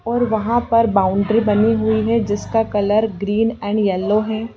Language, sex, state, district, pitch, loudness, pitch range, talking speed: Hindi, female, Madhya Pradesh, Dhar, 220 Hz, -17 LUFS, 205-225 Hz, 170 wpm